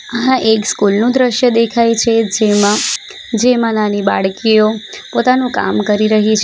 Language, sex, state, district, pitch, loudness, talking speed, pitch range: Gujarati, female, Gujarat, Valsad, 220 Hz, -13 LUFS, 160 wpm, 210-240 Hz